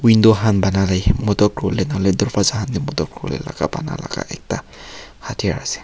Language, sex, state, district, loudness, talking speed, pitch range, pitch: Nagamese, male, Nagaland, Kohima, -19 LUFS, 195 wpm, 95-110 Hz, 105 Hz